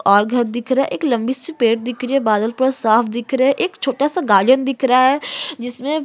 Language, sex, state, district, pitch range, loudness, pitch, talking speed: Hindi, female, Uttarakhand, Tehri Garhwal, 235-275 Hz, -17 LUFS, 260 Hz, 270 wpm